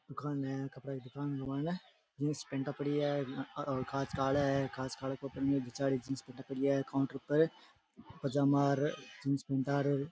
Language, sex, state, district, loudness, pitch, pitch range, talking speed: Rajasthani, male, Rajasthan, Churu, -36 LUFS, 135 Hz, 135-145 Hz, 140 wpm